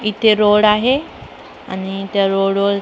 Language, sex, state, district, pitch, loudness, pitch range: Marathi, female, Maharashtra, Mumbai Suburban, 205 Hz, -15 LUFS, 195-215 Hz